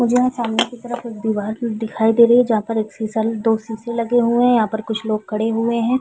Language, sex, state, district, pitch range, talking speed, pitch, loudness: Hindi, female, Chhattisgarh, Raigarh, 220-240 Hz, 270 wpm, 225 Hz, -19 LUFS